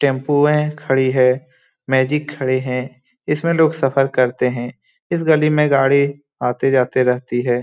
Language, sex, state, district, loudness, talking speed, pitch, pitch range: Hindi, male, Bihar, Lakhisarai, -17 LUFS, 165 wpm, 135 Hz, 125-150 Hz